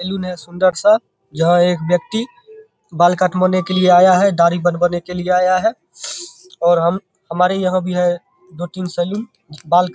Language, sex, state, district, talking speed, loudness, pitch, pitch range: Hindi, male, Bihar, Begusarai, 175 wpm, -16 LUFS, 180 Hz, 175-190 Hz